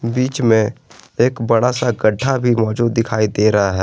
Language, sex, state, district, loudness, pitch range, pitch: Hindi, male, Jharkhand, Garhwa, -16 LUFS, 110-125 Hz, 115 Hz